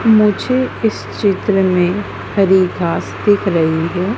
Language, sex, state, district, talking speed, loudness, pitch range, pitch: Hindi, female, Madhya Pradesh, Dhar, 130 wpm, -15 LUFS, 180-210 Hz, 195 Hz